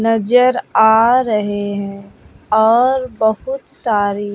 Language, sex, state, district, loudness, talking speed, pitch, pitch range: Hindi, female, Bihar, West Champaran, -15 LUFS, 95 wpm, 220 Hz, 205-250 Hz